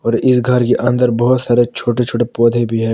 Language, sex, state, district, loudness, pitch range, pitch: Hindi, male, Jharkhand, Palamu, -14 LUFS, 115-125 Hz, 120 Hz